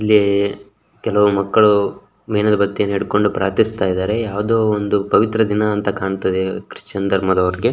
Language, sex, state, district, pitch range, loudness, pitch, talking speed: Kannada, male, Karnataka, Shimoga, 100-105 Hz, -17 LUFS, 100 Hz, 130 wpm